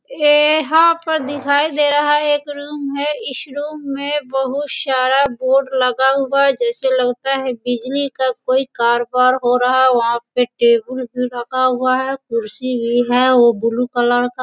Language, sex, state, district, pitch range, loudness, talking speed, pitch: Hindi, female, Bihar, Sitamarhi, 245-285 Hz, -16 LUFS, 185 wpm, 260 Hz